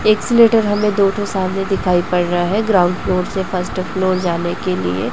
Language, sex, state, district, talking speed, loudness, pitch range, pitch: Hindi, female, Chhattisgarh, Raipur, 200 wpm, -16 LUFS, 180-205 Hz, 190 Hz